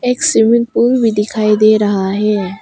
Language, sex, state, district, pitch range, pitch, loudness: Hindi, female, Arunachal Pradesh, Papum Pare, 210-235 Hz, 215 Hz, -12 LUFS